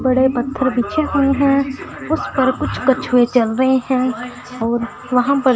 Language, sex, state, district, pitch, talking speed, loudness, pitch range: Hindi, female, Punjab, Fazilka, 255 Hz, 150 wpm, -17 LUFS, 250-275 Hz